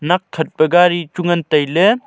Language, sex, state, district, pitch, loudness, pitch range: Wancho, male, Arunachal Pradesh, Longding, 175 Hz, -15 LUFS, 160-180 Hz